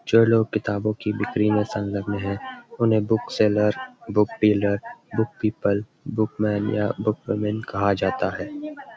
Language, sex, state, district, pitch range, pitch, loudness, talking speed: Hindi, male, Uttarakhand, Uttarkashi, 105-115 Hz, 105 Hz, -23 LUFS, 120 wpm